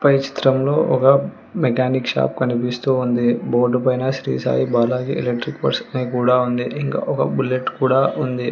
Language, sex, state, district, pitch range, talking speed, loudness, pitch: Telugu, female, Telangana, Hyderabad, 125-135 Hz, 155 wpm, -19 LUFS, 125 Hz